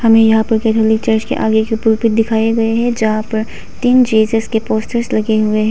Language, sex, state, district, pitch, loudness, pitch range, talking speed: Hindi, female, Arunachal Pradesh, Papum Pare, 220 Hz, -14 LUFS, 220-225 Hz, 220 wpm